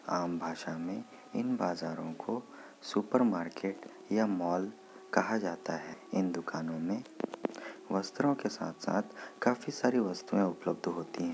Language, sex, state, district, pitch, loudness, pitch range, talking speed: Hindi, male, Bihar, Kishanganj, 95 Hz, -34 LUFS, 85-140 Hz, 130 wpm